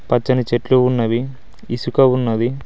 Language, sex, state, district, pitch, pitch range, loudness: Telugu, male, Telangana, Mahabubabad, 125 Hz, 120-130 Hz, -17 LUFS